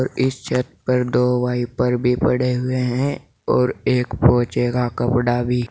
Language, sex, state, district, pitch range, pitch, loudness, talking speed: Hindi, male, Uttar Pradesh, Saharanpur, 120-125 Hz, 125 Hz, -20 LUFS, 160 wpm